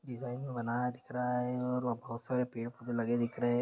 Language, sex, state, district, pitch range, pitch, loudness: Hindi, male, Bihar, Muzaffarpur, 120-125 Hz, 125 Hz, -36 LUFS